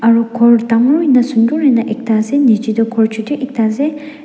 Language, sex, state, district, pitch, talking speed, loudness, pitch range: Nagamese, female, Nagaland, Dimapur, 235 Hz, 185 wpm, -13 LUFS, 225-275 Hz